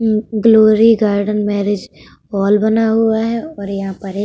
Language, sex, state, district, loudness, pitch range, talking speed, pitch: Hindi, female, Uttar Pradesh, Budaun, -14 LUFS, 200-225 Hz, 170 wpm, 215 Hz